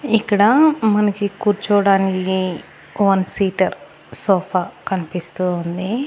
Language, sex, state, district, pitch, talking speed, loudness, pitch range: Telugu, female, Andhra Pradesh, Annamaya, 195 Hz, 80 wpm, -18 LUFS, 185-205 Hz